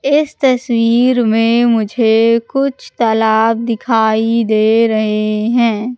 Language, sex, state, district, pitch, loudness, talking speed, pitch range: Hindi, female, Madhya Pradesh, Katni, 230 Hz, -13 LUFS, 100 wpm, 220-240 Hz